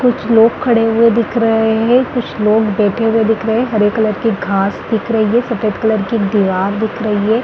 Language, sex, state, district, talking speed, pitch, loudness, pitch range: Hindi, female, Chhattisgarh, Bastar, 220 wpm, 225 Hz, -14 LUFS, 210-230 Hz